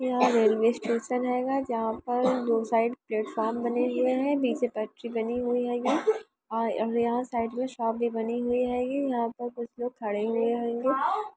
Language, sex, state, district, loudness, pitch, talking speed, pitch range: Hindi, female, West Bengal, Kolkata, -28 LUFS, 240 Hz, 155 wpm, 230-250 Hz